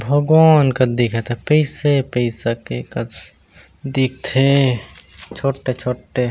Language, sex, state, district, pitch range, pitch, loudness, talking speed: Chhattisgarhi, male, Chhattisgarh, Raigarh, 115-135 Hz, 125 Hz, -17 LUFS, 95 wpm